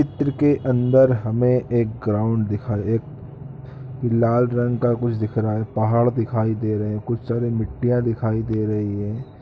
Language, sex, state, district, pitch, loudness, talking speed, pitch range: Hindi, male, Jharkhand, Sahebganj, 115 Hz, -21 LUFS, 170 wpm, 110-125 Hz